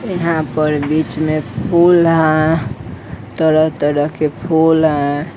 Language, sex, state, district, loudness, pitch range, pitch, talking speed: Hindi, male, Bihar, Patna, -14 LUFS, 145-160 Hz, 155 Hz, 125 wpm